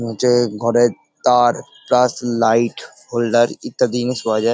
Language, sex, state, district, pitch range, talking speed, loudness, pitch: Bengali, male, West Bengal, Dakshin Dinajpur, 115-120 Hz, 145 wpm, -17 LUFS, 120 Hz